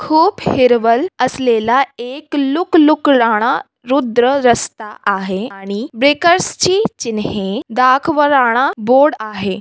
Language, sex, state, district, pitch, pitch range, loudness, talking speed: Marathi, female, Maharashtra, Sindhudurg, 255 Hz, 225-290 Hz, -14 LUFS, 95 wpm